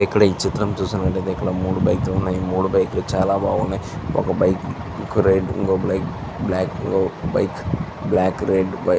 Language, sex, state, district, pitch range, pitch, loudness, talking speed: Telugu, male, Andhra Pradesh, Chittoor, 95-100 Hz, 95 Hz, -21 LUFS, 140 wpm